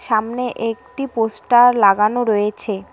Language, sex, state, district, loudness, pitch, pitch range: Bengali, female, West Bengal, Cooch Behar, -17 LUFS, 225 Hz, 210-245 Hz